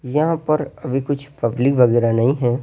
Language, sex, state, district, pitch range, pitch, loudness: Hindi, male, Madhya Pradesh, Bhopal, 120-145 Hz, 135 Hz, -18 LUFS